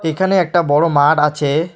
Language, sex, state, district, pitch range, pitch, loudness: Bengali, male, West Bengal, Alipurduar, 145-175 Hz, 160 Hz, -14 LUFS